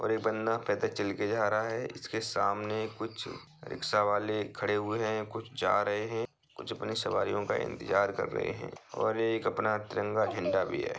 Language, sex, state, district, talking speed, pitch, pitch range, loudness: Hindi, male, Bihar, Bhagalpur, 195 wpm, 110 Hz, 105-115 Hz, -32 LUFS